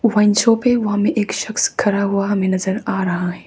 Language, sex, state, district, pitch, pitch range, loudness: Hindi, female, Arunachal Pradesh, Papum Pare, 205 Hz, 190-215 Hz, -17 LUFS